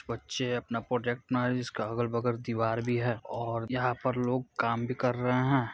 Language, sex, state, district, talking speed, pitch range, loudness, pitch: Hindi, male, Bihar, Gopalganj, 210 wpm, 115-125 Hz, -31 LUFS, 120 Hz